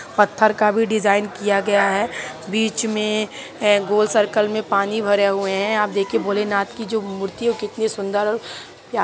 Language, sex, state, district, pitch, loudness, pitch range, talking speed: Hindi, female, Bihar, Begusarai, 210 Hz, -20 LUFS, 200-215 Hz, 185 wpm